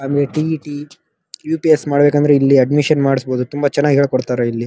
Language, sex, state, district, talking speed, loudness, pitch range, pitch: Kannada, male, Karnataka, Dharwad, 165 wpm, -15 LUFS, 135-145 Hz, 145 Hz